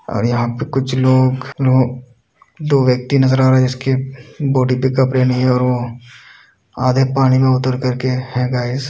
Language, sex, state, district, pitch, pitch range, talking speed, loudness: Hindi, male, Uttar Pradesh, Budaun, 130 Hz, 125-130 Hz, 180 wpm, -16 LUFS